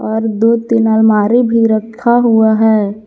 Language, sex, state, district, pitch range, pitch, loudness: Hindi, female, Jharkhand, Garhwa, 220-230 Hz, 220 Hz, -11 LUFS